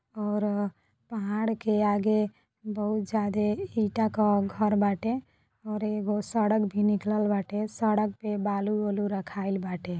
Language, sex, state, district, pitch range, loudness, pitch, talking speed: Bhojpuri, female, Uttar Pradesh, Deoria, 205-215 Hz, -28 LUFS, 210 Hz, 130 wpm